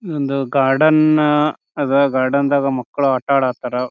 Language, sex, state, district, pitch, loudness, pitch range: Kannada, male, Karnataka, Bijapur, 140 Hz, -16 LUFS, 130-150 Hz